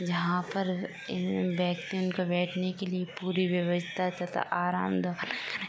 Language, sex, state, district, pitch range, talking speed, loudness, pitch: Hindi, female, Uttar Pradesh, Gorakhpur, 175-185 Hz, 105 wpm, -31 LUFS, 180 Hz